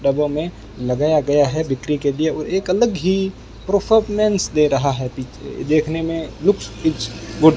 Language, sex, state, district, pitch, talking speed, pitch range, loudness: Hindi, male, Rajasthan, Bikaner, 155 Hz, 175 wpm, 140-185 Hz, -19 LUFS